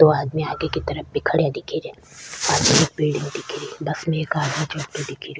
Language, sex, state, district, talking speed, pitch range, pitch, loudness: Rajasthani, female, Rajasthan, Churu, 220 wpm, 150-155 Hz, 155 Hz, -22 LUFS